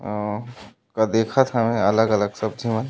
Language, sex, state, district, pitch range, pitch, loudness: Chhattisgarhi, male, Chhattisgarh, Raigarh, 105-115 Hz, 110 Hz, -21 LUFS